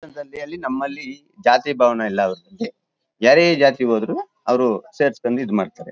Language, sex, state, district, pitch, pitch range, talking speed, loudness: Kannada, male, Karnataka, Mysore, 140 Hz, 120-170 Hz, 140 wpm, -19 LUFS